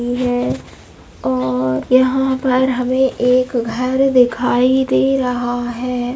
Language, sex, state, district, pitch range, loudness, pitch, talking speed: Hindi, female, Chhattisgarh, Rajnandgaon, 230-255 Hz, -16 LUFS, 250 Hz, 115 wpm